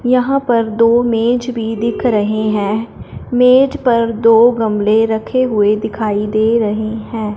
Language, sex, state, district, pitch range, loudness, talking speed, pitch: Hindi, female, Punjab, Fazilka, 215-240 Hz, -14 LUFS, 145 wpm, 225 Hz